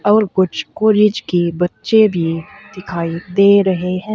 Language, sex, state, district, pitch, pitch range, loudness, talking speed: Hindi, female, Uttar Pradesh, Saharanpur, 185 Hz, 175-210 Hz, -15 LUFS, 145 wpm